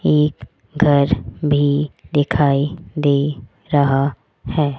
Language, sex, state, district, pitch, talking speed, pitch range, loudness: Hindi, female, Rajasthan, Jaipur, 140 Hz, 90 wpm, 130-150 Hz, -18 LUFS